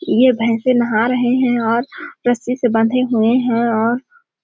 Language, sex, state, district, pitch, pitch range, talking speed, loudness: Hindi, female, Chhattisgarh, Sarguja, 245 Hz, 230-255 Hz, 175 wpm, -16 LUFS